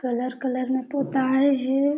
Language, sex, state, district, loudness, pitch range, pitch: Chhattisgarhi, female, Chhattisgarh, Jashpur, -24 LUFS, 255-275 Hz, 260 Hz